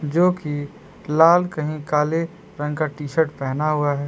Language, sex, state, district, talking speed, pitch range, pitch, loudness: Hindi, male, Jharkhand, Palamu, 175 wpm, 150-165 Hz, 150 Hz, -21 LUFS